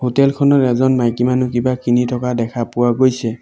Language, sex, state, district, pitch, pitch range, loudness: Assamese, male, Assam, Sonitpur, 125 Hz, 120-130 Hz, -16 LUFS